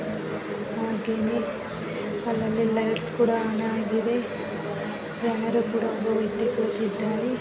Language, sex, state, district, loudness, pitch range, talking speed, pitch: Kannada, female, Karnataka, Gulbarga, -27 LUFS, 220-230 Hz, 90 wpm, 225 Hz